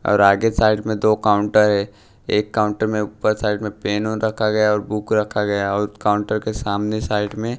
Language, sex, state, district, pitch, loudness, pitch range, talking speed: Hindi, male, Punjab, Pathankot, 105 Hz, -19 LUFS, 105-110 Hz, 215 wpm